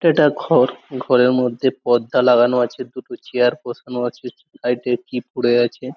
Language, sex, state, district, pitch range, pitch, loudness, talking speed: Bengali, male, West Bengal, Kolkata, 120-130 Hz, 125 Hz, -18 LUFS, 170 wpm